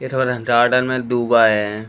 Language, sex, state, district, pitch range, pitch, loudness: Hindi, male, Uttar Pradesh, Deoria, 115-125 Hz, 120 Hz, -16 LUFS